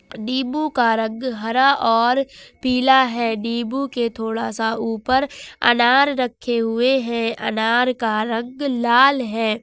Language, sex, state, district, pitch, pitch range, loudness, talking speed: Hindi, female, Uttar Pradesh, Lucknow, 240 Hz, 225-260 Hz, -19 LUFS, 130 wpm